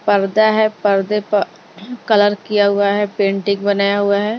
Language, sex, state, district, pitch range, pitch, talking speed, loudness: Hindi, female, Maharashtra, Mumbai Suburban, 200-210 Hz, 205 Hz, 165 wpm, -16 LUFS